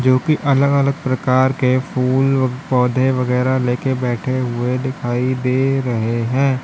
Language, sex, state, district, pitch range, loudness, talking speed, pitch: Hindi, male, Uttar Pradesh, Lalitpur, 125-130 Hz, -17 LUFS, 145 wpm, 130 Hz